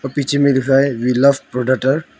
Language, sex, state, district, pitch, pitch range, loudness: Hindi, female, Arunachal Pradesh, Longding, 135 Hz, 130-140 Hz, -15 LUFS